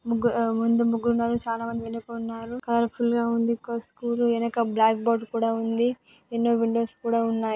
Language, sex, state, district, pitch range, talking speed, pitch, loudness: Telugu, female, Andhra Pradesh, Anantapur, 230-235 Hz, 180 wpm, 230 Hz, -25 LUFS